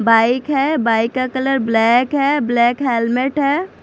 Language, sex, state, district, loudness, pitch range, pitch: Hindi, female, Chandigarh, Chandigarh, -16 LUFS, 230-275 Hz, 255 Hz